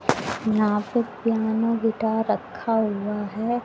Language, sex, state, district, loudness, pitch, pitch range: Hindi, female, Haryana, Charkhi Dadri, -24 LUFS, 220 Hz, 215-230 Hz